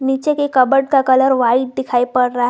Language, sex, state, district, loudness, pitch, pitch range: Hindi, female, Jharkhand, Garhwa, -15 LUFS, 260 Hz, 250-270 Hz